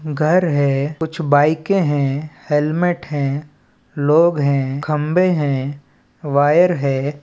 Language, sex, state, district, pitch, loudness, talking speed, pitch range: Chhattisgarhi, male, Chhattisgarh, Balrampur, 150 Hz, -17 LUFS, 110 wpm, 140-155 Hz